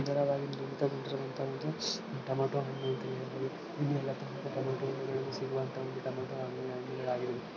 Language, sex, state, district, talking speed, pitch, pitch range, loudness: Kannada, male, Karnataka, Belgaum, 105 wpm, 135 Hz, 130-135 Hz, -36 LUFS